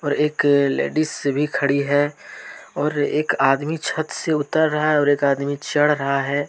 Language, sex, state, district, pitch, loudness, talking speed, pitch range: Hindi, male, Jharkhand, Deoghar, 145 Hz, -20 LUFS, 185 wpm, 140-150 Hz